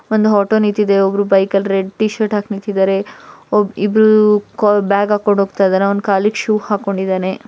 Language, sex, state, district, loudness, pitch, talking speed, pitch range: Kannada, female, Karnataka, Gulbarga, -14 LUFS, 205 Hz, 175 wpm, 195-210 Hz